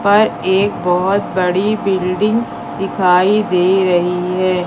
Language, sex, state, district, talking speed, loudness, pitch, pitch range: Hindi, female, Madhya Pradesh, Katni, 115 wpm, -15 LUFS, 185 Hz, 180-200 Hz